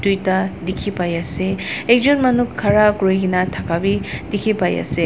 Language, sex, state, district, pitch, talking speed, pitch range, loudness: Nagamese, female, Nagaland, Dimapur, 195 Hz, 130 wpm, 180-210 Hz, -18 LUFS